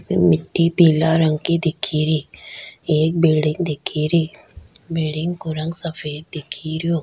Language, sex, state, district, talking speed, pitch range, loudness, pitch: Rajasthani, female, Rajasthan, Churu, 120 wpm, 155-170 Hz, -20 LUFS, 160 Hz